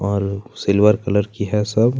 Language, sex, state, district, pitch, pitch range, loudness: Hindi, male, Chhattisgarh, Kabirdham, 105 Hz, 100-105 Hz, -19 LUFS